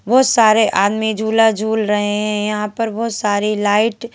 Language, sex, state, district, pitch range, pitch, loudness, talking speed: Hindi, female, Madhya Pradesh, Bhopal, 210-225 Hz, 215 Hz, -16 LUFS, 190 wpm